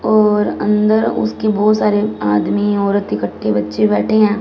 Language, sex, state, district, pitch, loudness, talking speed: Hindi, female, Punjab, Fazilka, 205 Hz, -15 LUFS, 150 wpm